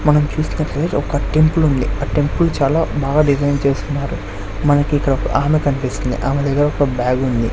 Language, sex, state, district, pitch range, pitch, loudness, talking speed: Telugu, male, Andhra Pradesh, Sri Satya Sai, 130-145 Hz, 140 Hz, -17 LUFS, 160 wpm